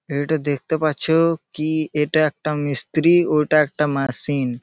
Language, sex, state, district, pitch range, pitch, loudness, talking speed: Bengali, male, West Bengal, Malda, 145-155 Hz, 150 Hz, -19 LUFS, 140 wpm